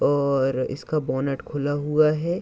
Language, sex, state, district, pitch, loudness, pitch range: Hindi, male, Uttar Pradesh, Gorakhpur, 145 Hz, -23 LUFS, 135-155 Hz